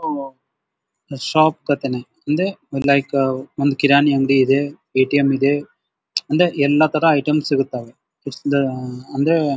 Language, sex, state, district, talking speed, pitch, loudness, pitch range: Kannada, male, Karnataka, Dharwad, 100 wpm, 140 Hz, -18 LUFS, 135-150 Hz